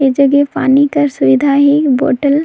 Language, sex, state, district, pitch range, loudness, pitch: Sadri, female, Chhattisgarh, Jashpur, 270-285 Hz, -11 LUFS, 280 Hz